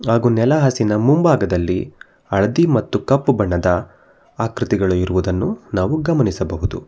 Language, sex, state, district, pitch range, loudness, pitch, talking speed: Kannada, male, Karnataka, Bangalore, 95-135 Hz, -17 LUFS, 105 Hz, 95 wpm